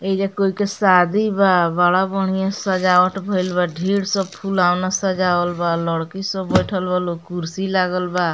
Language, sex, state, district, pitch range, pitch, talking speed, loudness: Bhojpuri, female, Bihar, Muzaffarpur, 180-195 Hz, 185 Hz, 160 wpm, -19 LUFS